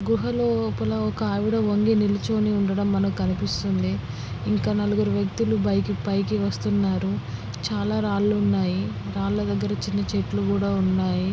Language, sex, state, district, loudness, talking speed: Telugu, female, Telangana, Karimnagar, -24 LUFS, 125 wpm